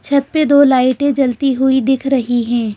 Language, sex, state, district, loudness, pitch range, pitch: Hindi, female, Madhya Pradesh, Bhopal, -14 LUFS, 255-280 Hz, 265 Hz